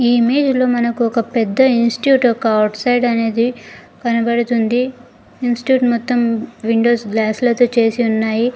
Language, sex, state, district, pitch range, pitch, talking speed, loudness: Telugu, female, Andhra Pradesh, Guntur, 230-245 Hz, 235 Hz, 125 wpm, -16 LUFS